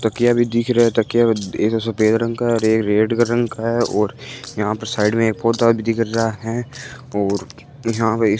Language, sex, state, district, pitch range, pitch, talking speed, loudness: Hindi, female, Rajasthan, Bikaner, 110-120 Hz, 115 Hz, 230 wpm, -18 LUFS